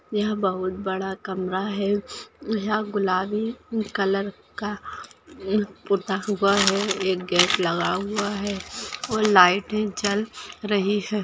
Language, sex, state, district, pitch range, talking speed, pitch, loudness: Hindi, female, Maharashtra, Solapur, 190-210 Hz, 115 wpm, 200 Hz, -24 LUFS